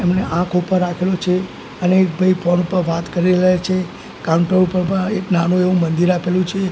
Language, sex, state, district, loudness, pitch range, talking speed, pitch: Gujarati, male, Gujarat, Gandhinagar, -17 LUFS, 175-185 Hz, 205 wpm, 180 Hz